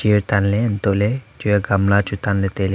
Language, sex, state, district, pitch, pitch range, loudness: Wancho, male, Arunachal Pradesh, Longding, 100 Hz, 100-105 Hz, -19 LUFS